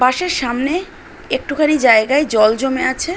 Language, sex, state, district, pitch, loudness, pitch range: Bengali, female, West Bengal, Dakshin Dinajpur, 265 Hz, -15 LUFS, 250-305 Hz